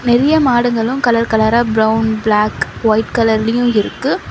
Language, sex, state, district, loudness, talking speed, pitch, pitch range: Tamil, female, Tamil Nadu, Chennai, -14 LUFS, 125 wpm, 225 Hz, 220-240 Hz